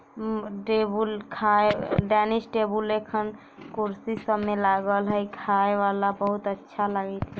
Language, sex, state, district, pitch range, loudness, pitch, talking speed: Bajjika, female, Bihar, Vaishali, 200-215 Hz, -26 LUFS, 210 Hz, 155 wpm